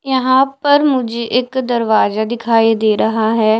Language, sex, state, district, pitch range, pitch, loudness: Hindi, female, Delhi, New Delhi, 220-260 Hz, 235 Hz, -14 LUFS